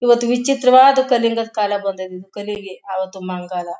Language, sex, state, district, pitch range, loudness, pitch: Kannada, female, Karnataka, Mysore, 190-240 Hz, -17 LUFS, 205 Hz